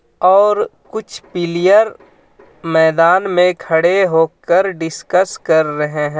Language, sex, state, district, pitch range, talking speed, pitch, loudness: Hindi, male, Jharkhand, Ranchi, 160-190 Hz, 105 wpm, 175 Hz, -14 LUFS